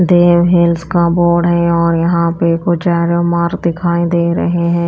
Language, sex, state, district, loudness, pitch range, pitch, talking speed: Hindi, female, Chhattisgarh, Raipur, -13 LUFS, 170-175 Hz, 170 Hz, 185 wpm